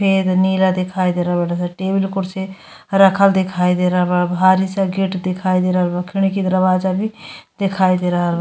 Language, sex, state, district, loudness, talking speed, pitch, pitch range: Bhojpuri, female, Uttar Pradesh, Gorakhpur, -17 LUFS, 200 wpm, 185 Hz, 180-190 Hz